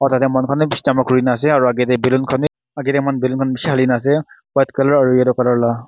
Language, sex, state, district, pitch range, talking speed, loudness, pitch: Nagamese, male, Nagaland, Kohima, 125-140 Hz, 315 wpm, -16 LUFS, 130 Hz